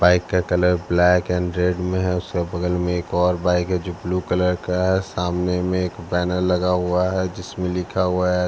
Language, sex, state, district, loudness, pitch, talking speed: Hindi, male, Bihar, Patna, -21 LUFS, 90 Hz, 225 wpm